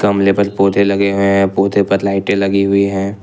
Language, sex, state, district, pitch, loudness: Hindi, male, Jharkhand, Ranchi, 100 Hz, -14 LUFS